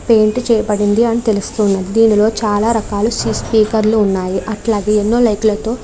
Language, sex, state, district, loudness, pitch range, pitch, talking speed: Telugu, female, Andhra Pradesh, Krishna, -14 LUFS, 210-225 Hz, 215 Hz, 155 wpm